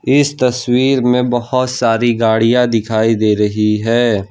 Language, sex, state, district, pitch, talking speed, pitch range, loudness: Hindi, male, Gujarat, Valsad, 120 Hz, 140 wpm, 110-125 Hz, -14 LUFS